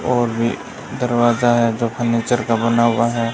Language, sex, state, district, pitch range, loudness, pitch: Hindi, male, Rajasthan, Bikaner, 115-120 Hz, -18 LUFS, 115 Hz